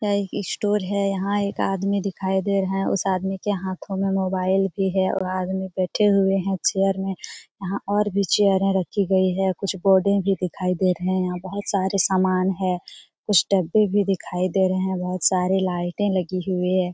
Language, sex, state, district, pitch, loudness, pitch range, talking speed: Hindi, female, Bihar, Jamui, 190 Hz, -22 LUFS, 185-200 Hz, 210 wpm